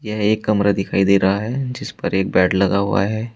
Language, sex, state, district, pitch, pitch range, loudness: Hindi, male, Uttar Pradesh, Shamli, 100 Hz, 95-110 Hz, -18 LUFS